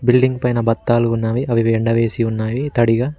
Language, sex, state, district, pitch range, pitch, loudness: Telugu, male, Telangana, Mahabubabad, 115-125 Hz, 115 Hz, -17 LUFS